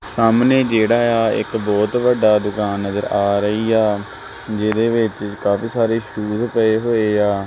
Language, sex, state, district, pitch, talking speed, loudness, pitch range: Punjabi, male, Punjab, Kapurthala, 110 Hz, 160 wpm, -17 LUFS, 105-115 Hz